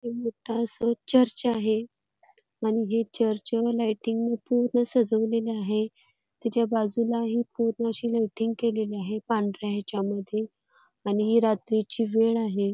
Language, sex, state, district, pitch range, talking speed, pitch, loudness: Marathi, female, Karnataka, Belgaum, 215-235 Hz, 120 wpm, 225 Hz, -27 LUFS